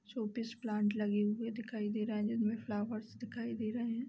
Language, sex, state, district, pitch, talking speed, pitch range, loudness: Hindi, female, Uttar Pradesh, Jalaun, 220 Hz, 235 wpm, 210-230 Hz, -37 LUFS